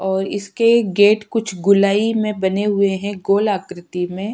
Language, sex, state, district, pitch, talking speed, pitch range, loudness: Hindi, female, Uttarakhand, Tehri Garhwal, 200 Hz, 165 wpm, 190-210 Hz, -17 LUFS